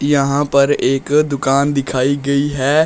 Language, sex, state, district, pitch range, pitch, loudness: Hindi, male, Uttar Pradesh, Shamli, 135-145 Hz, 140 Hz, -15 LUFS